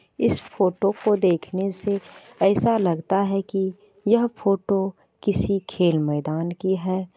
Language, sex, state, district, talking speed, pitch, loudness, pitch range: Maithili, female, Bihar, Supaul, 135 wpm, 195 Hz, -23 LUFS, 185-200 Hz